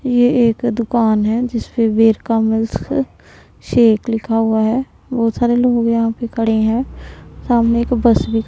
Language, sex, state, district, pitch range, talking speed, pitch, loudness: Hindi, female, Punjab, Pathankot, 225-240 Hz, 170 wpm, 230 Hz, -16 LUFS